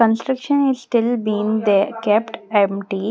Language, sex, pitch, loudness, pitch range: English, female, 220 Hz, -19 LUFS, 210-240 Hz